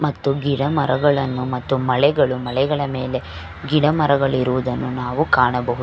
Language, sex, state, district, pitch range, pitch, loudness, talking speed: Kannada, female, Karnataka, Belgaum, 125-140 Hz, 130 Hz, -19 LUFS, 105 wpm